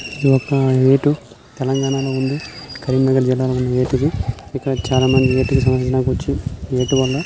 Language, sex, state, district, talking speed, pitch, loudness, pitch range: Telugu, male, Telangana, Karimnagar, 125 wpm, 130 Hz, -18 LUFS, 130-135 Hz